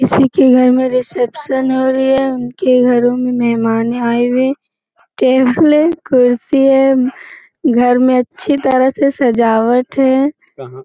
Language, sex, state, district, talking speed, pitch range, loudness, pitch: Hindi, female, Bihar, Jamui, 150 wpm, 245-270 Hz, -13 LUFS, 255 Hz